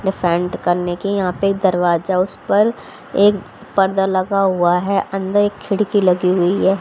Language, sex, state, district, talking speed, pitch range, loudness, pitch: Hindi, female, Haryana, Jhajjar, 175 wpm, 180-200 Hz, -17 LUFS, 190 Hz